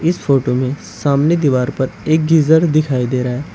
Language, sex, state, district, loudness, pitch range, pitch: Hindi, male, Uttar Pradesh, Shamli, -15 LUFS, 130-160 Hz, 140 Hz